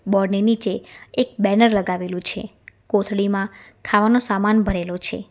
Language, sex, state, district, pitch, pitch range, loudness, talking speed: Gujarati, female, Gujarat, Valsad, 200 Hz, 195-215 Hz, -20 LUFS, 135 wpm